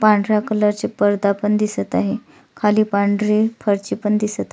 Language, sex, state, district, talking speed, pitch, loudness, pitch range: Marathi, female, Maharashtra, Solapur, 160 wpm, 210 Hz, -19 LUFS, 200-215 Hz